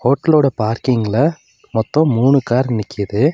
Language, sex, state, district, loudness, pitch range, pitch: Tamil, male, Tamil Nadu, Nilgiris, -16 LUFS, 110-140 Hz, 130 Hz